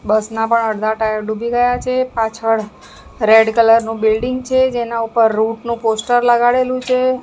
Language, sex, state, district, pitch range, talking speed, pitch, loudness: Gujarati, female, Maharashtra, Mumbai Suburban, 220-245 Hz, 165 wpm, 230 Hz, -15 LUFS